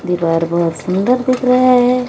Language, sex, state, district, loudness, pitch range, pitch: Hindi, female, Odisha, Malkangiri, -14 LUFS, 170-250 Hz, 245 Hz